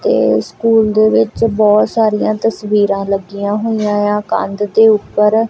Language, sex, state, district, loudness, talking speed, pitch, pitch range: Punjabi, female, Punjab, Kapurthala, -13 LUFS, 155 wpm, 210 Hz, 205-220 Hz